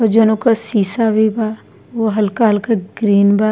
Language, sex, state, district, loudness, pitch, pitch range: Bhojpuri, female, Bihar, East Champaran, -15 LUFS, 220 Hz, 210-225 Hz